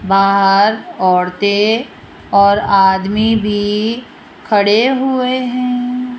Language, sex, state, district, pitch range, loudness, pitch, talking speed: Hindi, female, Rajasthan, Jaipur, 200-245 Hz, -13 LUFS, 210 Hz, 80 wpm